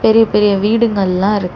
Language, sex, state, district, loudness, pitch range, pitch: Tamil, female, Tamil Nadu, Chennai, -13 LUFS, 195-220 Hz, 210 Hz